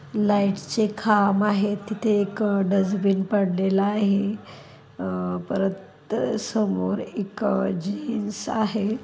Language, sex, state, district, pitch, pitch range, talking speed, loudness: Marathi, female, Maharashtra, Dhule, 200 Hz, 195-210 Hz, 100 wpm, -24 LUFS